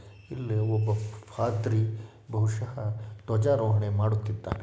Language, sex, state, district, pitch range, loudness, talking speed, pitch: Kannada, male, Karnataka, Shimoga, 105-110 Hz, -29 LUFS, 80 wpm, 110 Hz